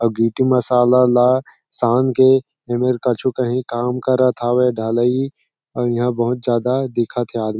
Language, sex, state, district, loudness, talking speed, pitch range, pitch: Chhattisgarhi, male, Chhattisgarh, Sarguja, -17 LUFS, 175 wpm, 120-130 Hz, 125 Hz